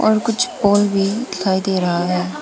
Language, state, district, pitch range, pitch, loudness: Hindi, Arunachal Pradesh, Papum Pare, 185-215 Hz, 195 Hz, -18 LUFS